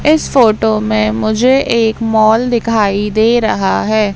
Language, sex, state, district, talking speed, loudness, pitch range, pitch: Hindi, female, Madhya Pradesh, Katni, 145 wpm, -12 LUFS, 215-235 Hz, 220 Hz